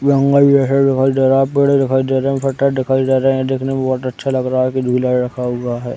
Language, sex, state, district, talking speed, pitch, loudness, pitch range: Hindi, male, Chhattisgarh, Raigarh, 290 wpm, 130 Hz, -15 LUFS, 130-135 Hz